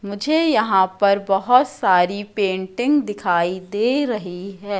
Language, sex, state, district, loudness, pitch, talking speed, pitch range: Hindi, female, Madhya Pradesh, Katni, -19 LUFS, 200 Hz, 125 wpm, 190-240 Hz